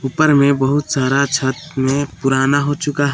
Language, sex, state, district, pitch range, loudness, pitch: Hindi, male, Jharkhand, Palamu, 135-145 Hz, -16 LUFS, 140 Hz